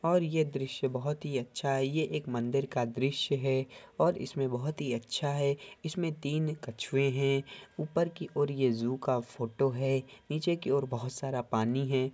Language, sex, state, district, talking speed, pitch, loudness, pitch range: Hindi, male, Andhra Pradesh, Krishna, 185 wpm, 135 Hz, -32 LUFS, 130-150 Hz